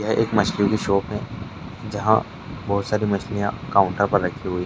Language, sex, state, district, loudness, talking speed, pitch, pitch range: Hindi, male, Bihar, Jamui, -22 LUFS, 195 wpm, 100 Hz, 100-105 Hz